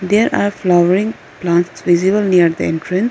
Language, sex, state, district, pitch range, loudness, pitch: English, female, Arunachal Pradesh, Lower Dibang Valley, 175-205 Hz, -15 LUFS, 180 Hz